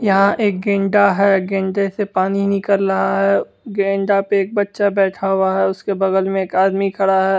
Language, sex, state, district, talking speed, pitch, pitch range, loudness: Hindi, male, Bihar, West Champaran, 195 wpm, 195 Hz, 195-200 Hz, -17 LUFS